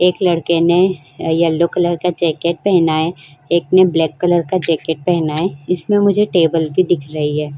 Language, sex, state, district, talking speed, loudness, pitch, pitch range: Hindi, female, Uttar Pradesh, Jyotiba Phule Nagar, 200 wpm, -15 LUFS, 170 Hz, 160-180 Hz